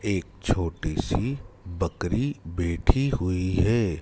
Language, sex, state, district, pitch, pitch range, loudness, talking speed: Hindi, male, Madhya Pradesh, Dhar, 95 Hz, 85-110 Hz, -27 LUFS, 105 wpm